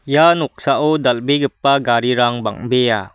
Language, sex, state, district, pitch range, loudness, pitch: Garo, male, Meghalaya, West Garo Hills, 120-145 Hz, -16 LUFS, 125 Hz